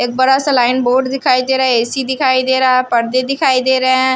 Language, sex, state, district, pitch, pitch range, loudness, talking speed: Hindi, female, Bihar, Patna, 260 Hz, 255-265 Hz, -13 LUFS, 275 wpm